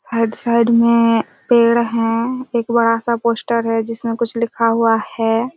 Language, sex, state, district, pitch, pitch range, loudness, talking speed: Hindi, female, Chhattisgarh, Raigarh, 230 Hz, 230-235 Hz, -16 LUFS, 160 wpm